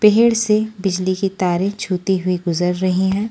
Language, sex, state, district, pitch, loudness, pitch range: Hindi, female, Delhi, New Delhi, 190 Hz, -18 LUFS, 185-210 Hz